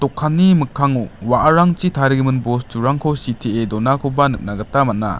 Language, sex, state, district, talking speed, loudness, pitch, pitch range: Garo, male, Meghalaya, West Garo Hills, 115 wpm, -17 LUFS, 135 Hz, 115-145 Hz